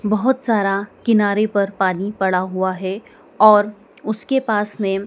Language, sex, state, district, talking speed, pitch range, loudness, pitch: Hindi, female, Madhya Pradesh, Dhar, 140 wpm, 195-215 Hz, -18 LUFS, 205 Hz